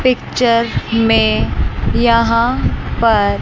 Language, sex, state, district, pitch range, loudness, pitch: Hindi, female, Chandigarh, Chandigarh, 225-235 Hz, -14 LUFS, 230 Hz